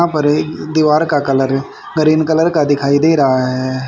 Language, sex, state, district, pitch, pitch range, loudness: Hindi, male, Haryana, Rohtak, 145 Hz, 135-155 Hz, -14 LUFS